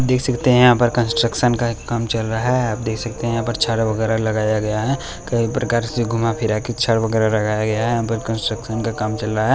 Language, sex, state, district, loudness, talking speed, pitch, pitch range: Hindi, male, Bihar, West Champaran, -19 LUFS, 250 wpm, 115 Hz, 110-120 Hz